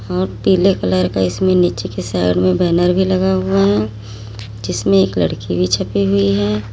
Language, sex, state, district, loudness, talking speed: Hindi, female, Uttar Pradesh, Lalitpur, -16 LUFS, 185 wpm